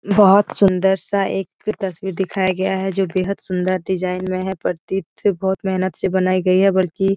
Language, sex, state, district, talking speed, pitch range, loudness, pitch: Hindi, female, Bihar, Jahanabad, 190 wpm, 185-195 Hz, -19 LUFS, 190 Hz